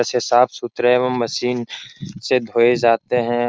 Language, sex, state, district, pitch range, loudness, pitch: Hindi, male, Bihar, Jahanabad, 120-125 Hz, -18 LUFS, 120 Hz